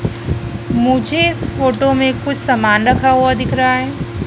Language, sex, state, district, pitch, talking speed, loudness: Hindi, female, Madhya Pradesh, Dhar, 150 Hz, 155 wpm, -15 LUFS